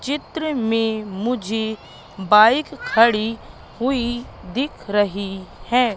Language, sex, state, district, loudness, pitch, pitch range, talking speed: Hindi, female, Madhya Pradesh, Katni, -20 LUFS, 225 Hz, 215-250 Hz, 90 wpm